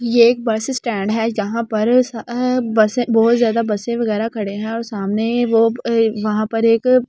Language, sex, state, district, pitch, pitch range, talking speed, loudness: Hindi, female, Delhi, New Delhi, 230 Hz, 220-235 Hz, 185 wpm, -17 LUFS